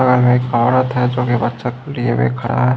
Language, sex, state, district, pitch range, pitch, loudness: Hindi, male, Odisha, Khordha, 120-125 Hz, 125 Hz, -16 LUFS